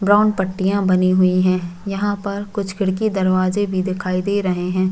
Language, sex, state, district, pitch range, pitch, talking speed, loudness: Hindi, female, Chhattisgarh, Jashpur, 185-200 Hz, 190 Hz, 185 wpm, -19 LUFS